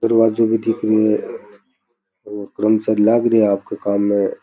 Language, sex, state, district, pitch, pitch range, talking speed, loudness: Rajasthani, male, Rajasthan, Nagaur, 110 Hz, 100-115 Hz, 175 wpm, -17 LUFS